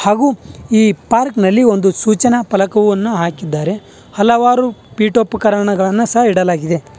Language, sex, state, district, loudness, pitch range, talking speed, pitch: Kannada, male, Karnataka, Bangalore, -13 LUFS, 190-230 Hz, 105 wpm, 210 Hz